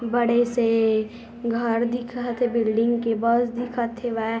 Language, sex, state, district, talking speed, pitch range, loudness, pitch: Chhattisgarhi, female, Chhattisgarh, Bilaspur, 135 wpm, 230-240 Hz, -23 LUFS, 235 Hz